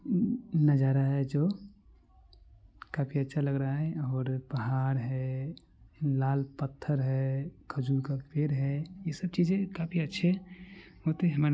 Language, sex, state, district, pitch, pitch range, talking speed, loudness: Maithili, male, Bihar, Supaul, 145 Hz, 135-175 Hz, 130 wpm, -31 LUFS